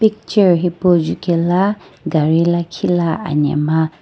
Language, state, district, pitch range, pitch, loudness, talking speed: Sumi, Nagaland, Dimapur, 160-185 Hz, 170 Hz, -16 LUFS, 105 wpm